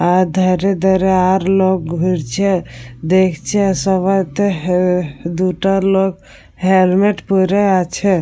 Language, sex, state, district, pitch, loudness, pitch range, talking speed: Bengali, female, West Bengal, Purulia, 185 Hz, -15 LUFS, 180-195 Hz, 110 wpm